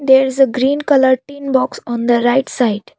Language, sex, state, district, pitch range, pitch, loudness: English, female, Assam, Kamrup Metropolitan, 240-270 Hz, 260 Hz, -15 LUFS